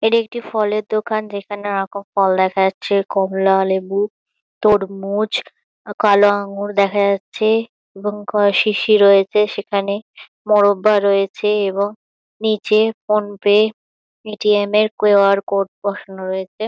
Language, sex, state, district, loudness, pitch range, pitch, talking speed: Bengali, female, West Bengal, Kolkata, -17 LUFS, 200-215 Hz, 205 Hz, 110 wpm